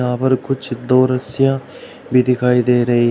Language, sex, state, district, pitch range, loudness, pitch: Hindi, male, Uttar Pradesh, Shamli, 125-130 Hz, -16 LUFS, 125 Hz